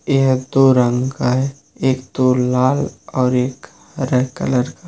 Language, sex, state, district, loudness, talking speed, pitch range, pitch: Hindi, male, Uttar Pradesh, Budaun, -17 LUFS, 160 wpm, 125-135 Hz, 130 Hz